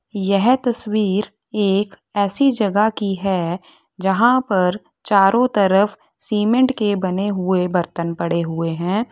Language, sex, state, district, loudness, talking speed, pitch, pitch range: Hindi, female, Uttar Pradesh, Lalitpur, -18 LUFS, 125 wpm, 200 Hz, 185-215 Hz